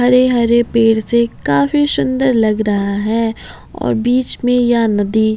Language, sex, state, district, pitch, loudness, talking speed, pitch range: Hindi, female, Bihar, Kaimur, 230 Hz, -14 LUFS, 155 wpm, 220-245 Hz